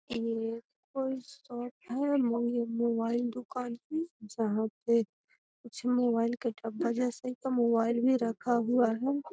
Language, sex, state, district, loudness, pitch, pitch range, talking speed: Magahi, female, Bihar, Gaya, -32 LUFS, 240 Hz, 230-255 Hz, 130 wpm